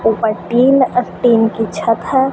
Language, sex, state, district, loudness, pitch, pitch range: Hindi, female, Jharkhand, Sahebganj, -14 LUFS, 230 Hz, 225-255 Hz